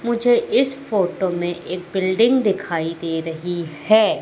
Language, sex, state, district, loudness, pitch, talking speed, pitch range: Hindi, female, Madhya Pradesh, Katni, -20 LUFS, 190 Hz, 140 wpm, 170-235 Hz